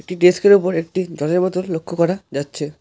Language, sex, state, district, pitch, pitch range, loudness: Bengali, male, West Bengal, Alipurduar, 180 Hz, 165-185 Hz, -18 LUFS